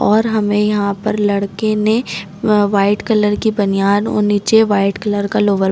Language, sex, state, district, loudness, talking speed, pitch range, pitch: Hindi, female, Chhattisgarh, Raigarh, -15 LUFS, 190 wpm, 200-215 Hz, 205 Hz